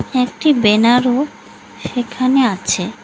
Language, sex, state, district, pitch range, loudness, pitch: Bengali, female, West Bengal, Cooch Behar, 225-255 Hz, -15 LUFS, 245 Hz